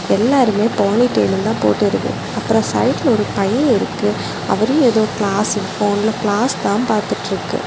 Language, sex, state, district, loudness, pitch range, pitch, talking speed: Tamil, female, Tamil Nadu, Kanyakumari, -16 LUFS, 205-240 Hz, 215 Hz, 140 wpm